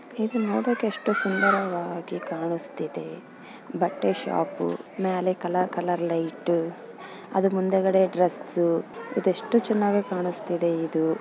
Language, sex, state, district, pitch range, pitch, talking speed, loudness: Kannada, female, Karnataka, Bellary, 170-205 Hz, 185 Hz, 105 wpm, -26 LUFS